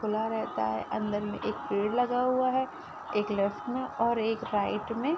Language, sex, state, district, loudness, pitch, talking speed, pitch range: Hindi, female, Uttar Pradesh, Ghazipur, -30 LUFS, 220 Hz, 195 wpm, 205-245 Hz